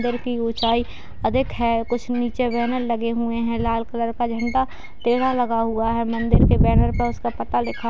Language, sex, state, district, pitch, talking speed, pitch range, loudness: Hindi, female, Bihar, Gaya, 230 Hz, 205 wpm, 230-240 Hz, -22 LUFS